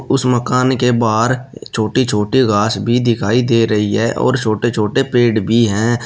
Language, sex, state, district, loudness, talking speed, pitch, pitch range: Hindi, male, Uttar Pradesh, Shamli, -15 LUFS, 180 wpm, 115 Hz, 110-125 Hz